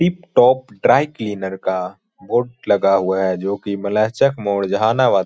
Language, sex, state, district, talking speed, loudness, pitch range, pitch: Hindi, male, Bihar, Jahanabad, 170 wpm, -18 LUFS, 95-125 Hz, 100 Hz